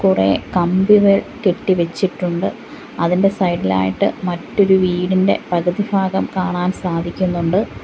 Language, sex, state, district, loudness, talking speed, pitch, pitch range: Malayalam, female, Kerala, Kollam, -17 LUFS, 85 wpm, 185 Hz, 175-190 Hz